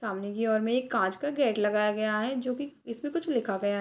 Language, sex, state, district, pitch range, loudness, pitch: Hindi, female, Bihar, Darbhanga, 210-260 Hz, -29 LUFS, 225 Hz